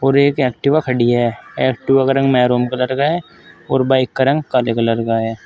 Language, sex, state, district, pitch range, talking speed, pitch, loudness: Hindi, male, Uttar Pradesh, Saharanpur, 120-135 Hz, 220 wpm, 130 Hz, -16 LUFS